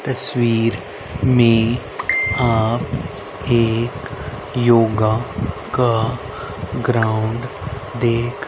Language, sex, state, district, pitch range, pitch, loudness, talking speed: Hindi, male, Haryana, Rohtak, 110-120 Hz, 115 Hz, -19 LUFS, 65 wpm